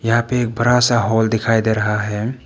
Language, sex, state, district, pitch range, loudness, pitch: Hindi, male, Arunachal Pradesh, Papum Pare, 110-120 Hz, -17 LUFS, 115 Hz